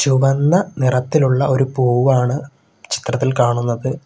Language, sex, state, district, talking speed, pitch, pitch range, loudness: Malayalam, male, Kerala, Kollam, 90 wpm, 130 Hz, 125-140 Hz, -17 LUFS